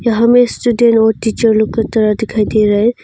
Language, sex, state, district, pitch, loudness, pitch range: Hindi, female, Arunachal Pradesh, Longding, 220 Hz, -12 LUFS, 215-235 Hz